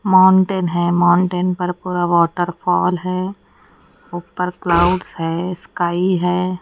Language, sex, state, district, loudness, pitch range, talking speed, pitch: Hindi, female, Odisha, Nuapada, -17 LUFS, 175-185 Hz, 110 wpm, 180 Hz